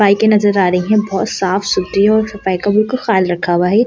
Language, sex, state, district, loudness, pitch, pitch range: Hindi, female, Delhi, New Delhi, -14 LUFS, 200 Hz, 185-215 Hz